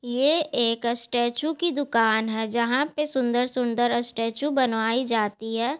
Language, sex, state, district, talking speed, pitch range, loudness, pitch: Hindi, female, Bihar, Gaya, 135 wpm, 230-275 Hz, -24 LUFS, 240 Hz